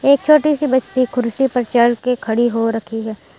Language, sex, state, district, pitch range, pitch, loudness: Hindi, female, Gujarat, Valsad, 230-265 Hz, 245 Hz, -16 LUFS